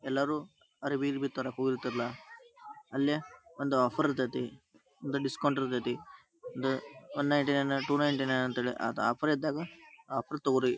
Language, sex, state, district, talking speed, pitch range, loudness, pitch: Kannada, male, Karnataka, Dharwad, 145 wpm, 130-150 Hz, -32 LUFS, 140 Hz